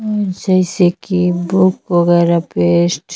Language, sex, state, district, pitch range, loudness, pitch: Bhojpuri, female, Uttar Pradesh, Ghazipur, 170-185 Hz, -14 LUFS, 180 Hz